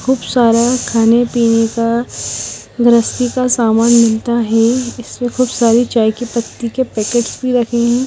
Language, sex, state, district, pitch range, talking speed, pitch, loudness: Hindi, female, Bihar, West Champaran, 230-245 Hz, 155 wpm, 235 Hz, -14 LUFS